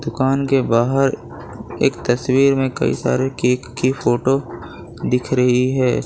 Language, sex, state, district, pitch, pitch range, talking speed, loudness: Hindi, male, Gujarat, Valsad, 130 Hz, 125-135 Hz, 140 wpm, -18 LUFS